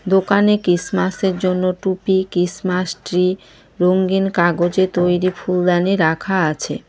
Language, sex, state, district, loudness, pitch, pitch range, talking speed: Bengali, female, West Bengal, Cooch Behar, -17 LUFS, 185 Hz, 180-190 Hz, 115 wpm